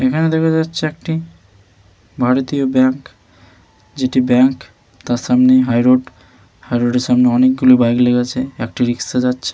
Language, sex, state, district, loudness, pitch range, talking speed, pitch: Bengali, male, West Bengal, Malda, -15 LUFS, 120-130 Hz, 140 wpm, 125 Hz